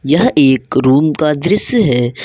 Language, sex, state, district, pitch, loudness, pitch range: Hindi, male, Jharkhand, Garhwa, 150 Hz, -12 LUFS, 130-190 Hz